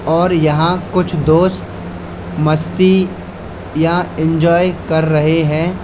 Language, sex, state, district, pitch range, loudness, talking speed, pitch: Hindi, male, Uttar Pradesh, Lalitpur, 150-175 Hz, -14 LUFS, 100 wpm, 160 Hz